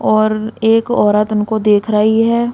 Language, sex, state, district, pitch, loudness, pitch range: Bundeli, female, Uttar Pradesh, Hamirpur, 215 Hz, -13 LUFS, 210-225 Hz